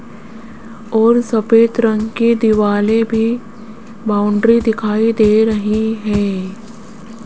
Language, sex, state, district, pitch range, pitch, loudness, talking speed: Hindi, female, Rajasthan, Jaipur, 215-230 Hz, 225 Hz, -14 LUFS, 90 wpm